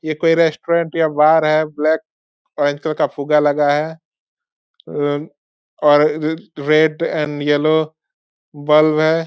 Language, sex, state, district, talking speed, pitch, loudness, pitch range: Hindi, male, Bihar, Bhagalpur, 130 wpm, 155 Hz, -16 LUFS, 145-160 Hz